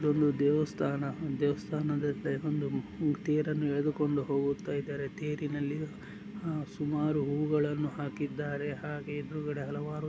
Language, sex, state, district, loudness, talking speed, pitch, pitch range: Kannada, male, Karnataka, Dakshina Kannada, -33 LUFS, 95 wpm, 150 Hz, 145-150 Hz